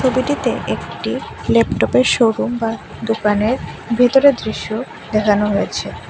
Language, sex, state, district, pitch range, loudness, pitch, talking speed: Bengali, female, Tripura, West Tripura, 210-245 Hz, -17 LUFS, 225 Hz, 100 wpm